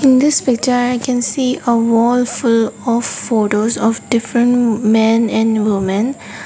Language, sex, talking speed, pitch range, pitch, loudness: English, female, 150 wpm, 225-245 Hz, 235 Hz, -15 LUFS